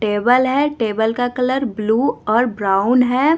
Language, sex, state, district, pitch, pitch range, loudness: Hindi, female, Bihar, Patna, 245 Hz, 220-260 Hz, -17 LUFS